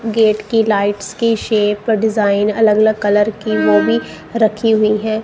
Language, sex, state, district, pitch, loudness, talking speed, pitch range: Hindi, female, Punjab, Kapurthala, 215 Hz, -15 LUFS, 170 wpm, 205-220 Hz